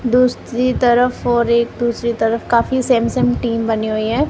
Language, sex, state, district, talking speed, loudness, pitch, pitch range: Hindi, female, Punjab, Kapurthala, 180 wpm, -16 LUFS, 235 Hz, 230-245 Hz